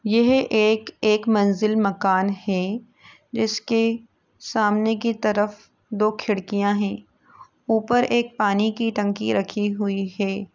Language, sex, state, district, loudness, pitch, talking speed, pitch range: Hindi, female, Uttar Pradesh, Etah, -22 LUFS, 215 Hz, 115 wpm, 205-225 Hz